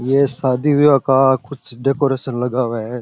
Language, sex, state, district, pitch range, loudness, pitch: Rajasthani, male, Rajasthan, Churu, 125-140 Hz, -16 LUFS, 130 Hz